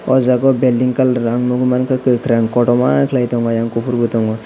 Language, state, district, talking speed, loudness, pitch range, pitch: Kokborok, Tripura, West Tripura, 200 wpm, -15 LUFS, 115-125 Hz, 120 Hz